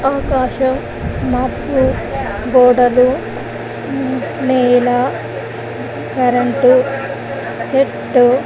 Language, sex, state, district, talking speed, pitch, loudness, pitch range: Telugu, female, Andhra Pradesh, Anantapur, 50 wpm, 250 Hz, -15 LUFS, 245-260 Hz